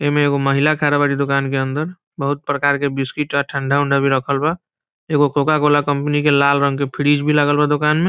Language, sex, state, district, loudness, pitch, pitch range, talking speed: Hindi, male, Bihar, Saran, -17 LUFS, 145 Hz, 140-150 Hz, 235 wpm